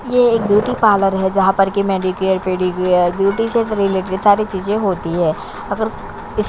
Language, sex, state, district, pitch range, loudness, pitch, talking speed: Hindi, female, Chhattisgarh, Korba, 185-215 Hz, -16 LUFS, 195 Hz, 175 wpm